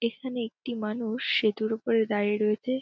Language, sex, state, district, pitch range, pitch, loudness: Bengali, female, West Bengal, Dakshin Dinajpur, 215-240 Hz, 225 Hz, -28 LUFS